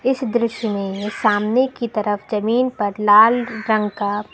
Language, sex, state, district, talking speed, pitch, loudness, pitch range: Hindi, female, Uttar Pradesh, Lucknow, 150 wpm, 215 Hz, -18 LUFS, 205-235 Hz